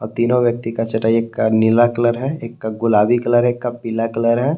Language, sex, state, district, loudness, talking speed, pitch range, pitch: Hindi, male, Jharkhand, Palamu, -17 LUFS, 250 wpm, 115-120 Hz, 115 Hz